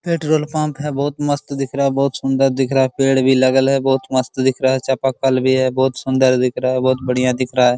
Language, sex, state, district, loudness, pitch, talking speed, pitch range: Hindi, male, Bihar, Araria, -17 LUFS, 135 Hz, 280 wpm, 130-135 Hz